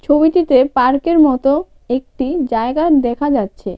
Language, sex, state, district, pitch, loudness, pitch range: Bengali, female, West Bengal, Cooch Behar, 275 Hz, -15 LUFS, 255-310 Hz